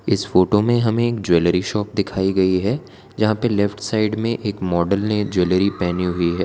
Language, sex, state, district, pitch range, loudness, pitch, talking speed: Hindi, male, Gujarat, Valsad, 90-110 Hz, -19 LUFS, 100 Hz, 205 wpm